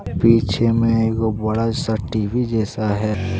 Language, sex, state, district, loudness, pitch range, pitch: Hindi, male, Jharkhand, Deoghar, -19 LUFS, 105-115 Hz, 110 Hz